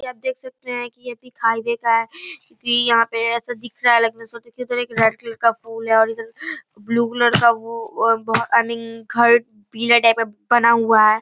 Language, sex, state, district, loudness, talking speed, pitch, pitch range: Hindi, female, Bihar, Darbhanga, -18 LUFS, 220 wpm, 235 Hz, 230-245 Hz